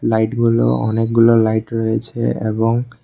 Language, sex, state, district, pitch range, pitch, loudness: Bengali, male, Tripura, West Tripura, 110-115 Hz, 115 Hz, -16 LUFS